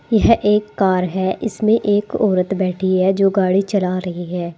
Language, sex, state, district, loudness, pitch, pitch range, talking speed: Hindi, female, Uttar Pradesh, Saharanpur, -17 LUFS, 190 Hz, 185-205 Hz, 185 wpm